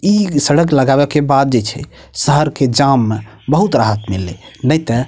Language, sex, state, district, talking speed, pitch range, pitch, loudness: Maithili, male, Bihar, Purnia, 200 wpm, 110-150 Hz, 135 Hz, -14 LUFS